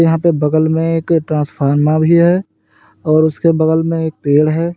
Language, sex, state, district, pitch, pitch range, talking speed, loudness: Hindi, male, Uttar Pradesh, Lalitpur, 160 Hz, 155-165 Hz, 175 wpm, -14 LUFS